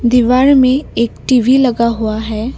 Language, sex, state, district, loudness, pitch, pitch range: Hindi, female, Assam, Kamrup Metropolitan, -12 LUFS, 245 Hz, 235-260 Hz